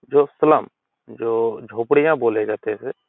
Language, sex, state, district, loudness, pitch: Hindi, male, Uttar Pradesh, Etah, -20 LUFS, 145 Hz